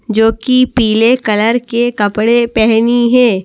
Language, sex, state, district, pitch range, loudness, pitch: Hindi, female, Madhya Pradesh, Bhopal, 220-240 Hz, -11 LUFS, 230 Hz